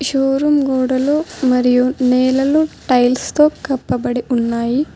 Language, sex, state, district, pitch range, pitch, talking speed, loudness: Telugu, female, Telangana, Hyderabad, 250-285 Hz, 260 Hz, 95 wpm, -16 LUFS